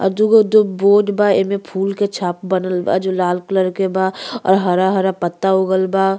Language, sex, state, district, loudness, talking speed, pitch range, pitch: Bhojpuri, female, Uttar Pradesh, Ghazipur, -16 LUFS, 215 wpm, 185-200 Hz, 190 Hz